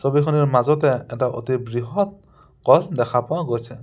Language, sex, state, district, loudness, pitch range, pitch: Assamese, male, Assam, Sonitpur, -20 LUFS, 125-150 Hz, 130 Hz